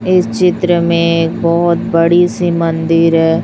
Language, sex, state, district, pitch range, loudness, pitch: Hindi, male, Chhattisgarh, Raipur, 165-180 Hz, -12 LUFS, 170 Hz